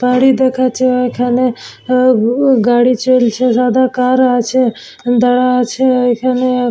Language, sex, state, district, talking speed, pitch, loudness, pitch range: Bengali, female, West Bengal, Purulia, 125 wpm, 250 Hz, -12 LUFS, 245-255 Hz